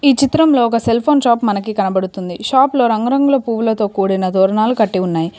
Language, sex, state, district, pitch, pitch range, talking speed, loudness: Telugu, female, Telangana, Komaram Bheem, 225 Hz, 195-260 Hz, 165 wpm, -15 LUFS